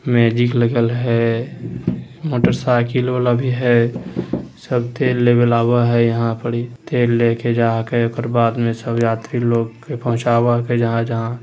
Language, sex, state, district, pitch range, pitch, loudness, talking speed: Hindi, male, Bihar, Jamui, 115-120 Hz, 120 Hz, -18 LUFS, 150 wpm